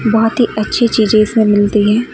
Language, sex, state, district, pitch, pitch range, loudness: Hindi, female, West Bengal, Alipurduar, 220 Hz, 215-225 Hz, -12 LUFS